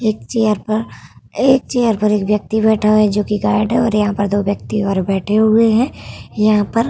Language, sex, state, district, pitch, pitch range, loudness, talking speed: Hindi, female, Uttar Pradesh, Hamirpur, 215 Hz, 210-225 Hz, -15 LUFS, 215 wpm